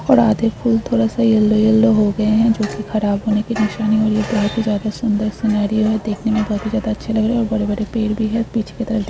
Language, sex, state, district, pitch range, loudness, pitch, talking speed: Hindi, female, Chhattisgarh, Bilaspur, 215-225 Hz, -17 LUFS, 215 Hz, 270 wpm